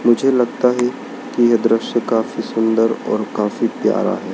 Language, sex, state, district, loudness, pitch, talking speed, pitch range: Hindi, male, Madhya Pradesh, Dhar, -17 LUFS, 120 Hz, 165 wpm, 115-125 Hz